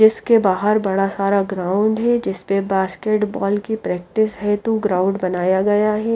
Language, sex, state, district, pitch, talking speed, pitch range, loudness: Hindi, female, Haryana, Rohtak, 200 Hz, 155 wpm, 190-215 Hz, -19 LUFS